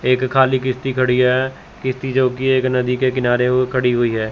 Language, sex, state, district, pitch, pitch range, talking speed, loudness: Hindi, male, Chandigarh, Chandigarh, 130 Hz, 125-130 Hz, 220 wpm, -17 LUFS